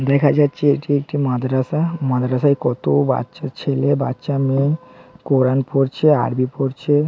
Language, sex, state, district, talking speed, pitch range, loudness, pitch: Bengali, male, West Bengal, Jhargram, 125 wpm, 130-145 Hz, -18 LUFS, 140 Hz